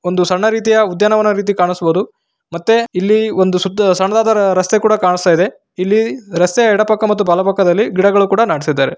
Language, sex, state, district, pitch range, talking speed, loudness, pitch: Kannada, male, Karnataka, Raichur, 180-215 Hz, 160 wpm, -13 LUFS, 200 Hz